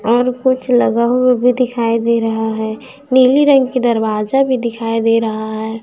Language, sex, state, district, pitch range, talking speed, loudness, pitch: Hindi, female, Chhattisgarh, Raipur, 225-255 Hz, 185 wpm, -14 LUFS, 235 Hz